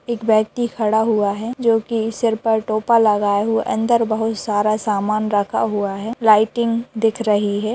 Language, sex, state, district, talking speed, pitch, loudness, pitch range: Hindi, female, Bihar, Darbhanga, 180 wpm, 220 Hz, -18 LUFS, 210-230 Hz